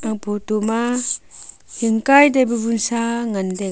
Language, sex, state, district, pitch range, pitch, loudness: Wancho, female, Arunachal Pradesh, Longding, 215-235 Hz, 230 Hz, -18 LUFS